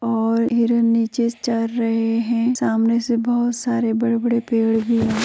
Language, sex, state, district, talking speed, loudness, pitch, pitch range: Hindi, female, Uttar Pradesh, Jyotiba Phule Nagar, 185 wpm, -19 LUFS, 230 Hz, 225-235 Hz